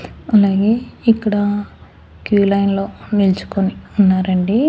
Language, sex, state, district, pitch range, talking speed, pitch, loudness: Telugu, female, Andhra Pradesh, Annamaya, 195-215 Hz, 90 wpm, 205 Hz, -16 LUFS